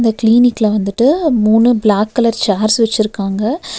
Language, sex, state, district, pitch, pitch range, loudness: Tamil, female, Tamil Nadu, Nilgiris, 225 Hz, 215-240 Hz, -13 LUFS